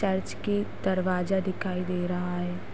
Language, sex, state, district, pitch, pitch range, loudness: Hindi, female, Uttar Pradesh, Gorakhpur, 185 Hz, 180-190 Hz, -29 LUFS